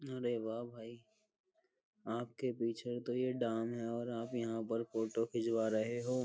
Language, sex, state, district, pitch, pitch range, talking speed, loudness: Hindi, male, Uttar Pradesh, Jyotiba Phule Nagar, 120 Hz, 115-125 Hz, 165 wpm, -39 LUFS